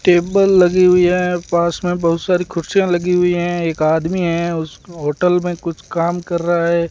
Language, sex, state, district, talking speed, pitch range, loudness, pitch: Hindi, male, Rajasthan, Bikaner, 200 wpm, 170-180 Hz, -16 LUFS, 175 Hz